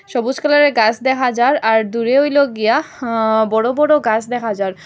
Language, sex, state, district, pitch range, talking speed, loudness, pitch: Bengali, female, Assam, Hailakandi, 220-285 Hz, 185 wpm, -15 LUFS, 240 Hz